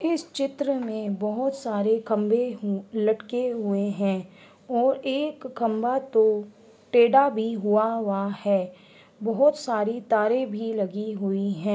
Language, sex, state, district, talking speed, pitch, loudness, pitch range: Hindi, female, Uttar Pradesh, Ghazipur, 130 wpm, 220 Hz, -25 LUFS, 205-245 Hz